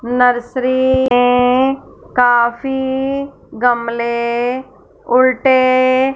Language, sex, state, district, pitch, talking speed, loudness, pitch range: Hindi, female, Punjab, Fazilka, 255 Hz, 40 wpm, -14 LUFS, 245-260 Hz